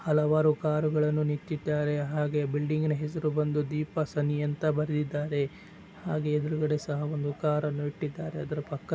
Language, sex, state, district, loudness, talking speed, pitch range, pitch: Kannada, male, Karnataka, Dakshina Kannada, -29 LUFS, 135 wpm, 150-155 Hz, 150 Hz